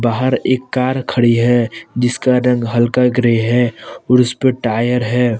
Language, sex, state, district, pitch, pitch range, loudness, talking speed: Hindi, male, Jharkhand, Palamu, 125 Hz, 120-125 Hz, -15 LUFS, 155 wpm